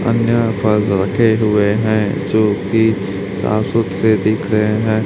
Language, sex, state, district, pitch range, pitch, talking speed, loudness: Hindi, male, Chhattisgarh, Raipur, 100-110 Hz, 110 Hz, 140 wpm, -15 LUFS